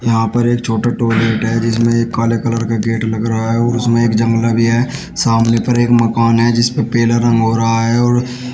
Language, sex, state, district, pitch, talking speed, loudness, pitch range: Hindi, male, Uttar Pradesh, Shamli, 115 Hz, 245 wpm, -14 LUFS, 115-120 Hz